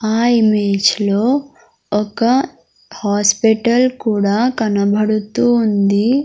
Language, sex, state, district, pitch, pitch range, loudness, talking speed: Telugu, female, Andhra Pradesh, Sri Satya Sai, 220 Hz, 205-240 Hz, -15 LUFS, 75 wpm